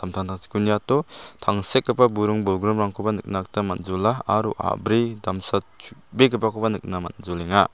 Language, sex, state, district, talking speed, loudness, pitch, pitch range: Garo, male, Meghalaya, South Garo Hills, 110 wpm, -22 LUFS, 105 Hz, 95-110 Hz